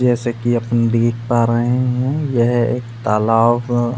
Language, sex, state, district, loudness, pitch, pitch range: Hindi, male, Uttar Pradesh, Budaun, -17 LUFS, 120 Hz, 115-120 Hz